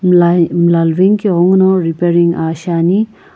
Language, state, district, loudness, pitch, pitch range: Sumi, Nagaland, Kohima, -12 LUFS, 175 Hz, 170-190 Hz